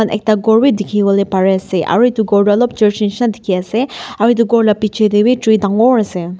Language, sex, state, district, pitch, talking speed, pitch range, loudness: Nagamese, female, Nagaland, Dimapur, 215 Hz, 215 wpm, 200-235 Hz, -13 LUFS